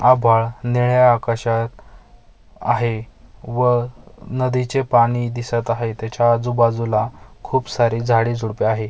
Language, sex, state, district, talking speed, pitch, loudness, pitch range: Marathi, male, Maharashtra, Mumbai Suburban, 100 wpm, 120 Hz, -19 LUFS, 115-120 Hz